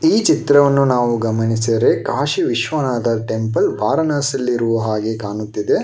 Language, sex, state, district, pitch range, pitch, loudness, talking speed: Kannada, male, Karnataka, Bangalore, 110-140 Hz, 120 Hz, -17 LUFS, 105 wpm